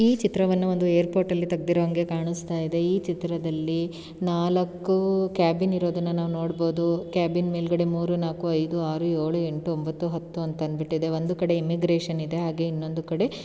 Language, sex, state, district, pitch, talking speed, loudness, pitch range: Kannada, female, Karnataka, Shimoga, 170 Hz, 155 wpm, -26 LUFS, 165-175 Hz